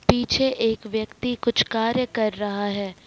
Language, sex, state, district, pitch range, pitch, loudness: Hindi, male, Jharkhand, Ranchi, 210-245 Hz, 225 Hz, -23 LUFS